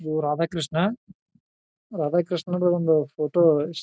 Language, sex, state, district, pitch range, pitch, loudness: Kannada, male, Karnataka, Bijapur, 155-175 Hz, 165 Hz, -23 LUFS